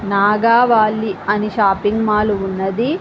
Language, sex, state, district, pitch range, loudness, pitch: Telugu, female, Andhra Pradesh, Srikakulam, 200-220 Hz, -16 LUFS, 210 Hz